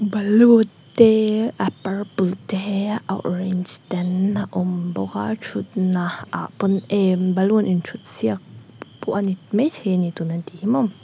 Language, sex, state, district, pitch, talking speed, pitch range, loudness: Mizo, female, Mizoram, Aizawl, 190 Hz, 145 wpm, 175-205 Hz, -21 LUFS